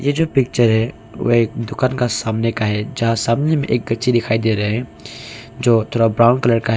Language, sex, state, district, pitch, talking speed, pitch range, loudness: Hindi, male, Arunachal Pradesh, Longding, 115 Hz, 230 wpm, 110-125 Hz, -17 LUFS